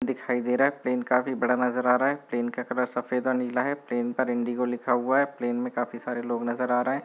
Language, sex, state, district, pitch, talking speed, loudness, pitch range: Hindi, male, Chhattisgarh, Balrampur, 125 Hz, 280 wpm, -27 LUFS, 120-130 Hz